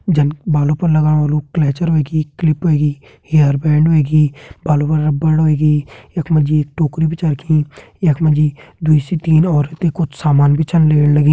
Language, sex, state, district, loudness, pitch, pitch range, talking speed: Garhwali, male, Uttarakhand, Tehri Garhwal, -15 LUFS, 155 Hz, 150-160 Hz, 170 wpm